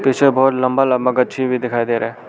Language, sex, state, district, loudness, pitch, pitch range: Hindi, male, Arunachal Pradesh, Lower Dibang Valley, -16 LUFS, 125 Hz, 125-135 Hz